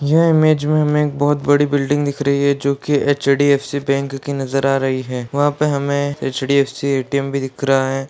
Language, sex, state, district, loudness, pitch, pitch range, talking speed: Hindi, male, Bihar, Darbhanga, -17 LUFS, 140 Hz, 135-145 Hz, 210 wpm